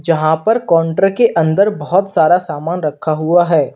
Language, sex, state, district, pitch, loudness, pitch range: Hindi, male, Uttar Pradesh, Lalitpur, 165 Hz, -14 LUFS, 155-195 Hz